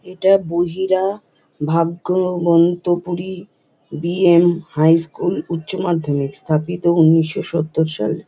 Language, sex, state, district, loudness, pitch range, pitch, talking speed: Bengali, female, West Bengal, North 24 Parganas, -17 LUFS, 160-180 Hz, 170 Hz, 95 wpm